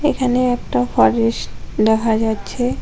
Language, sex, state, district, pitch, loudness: Bengali, female, West Bengal, Cooch Behar, 220 Hz, -17 LUFS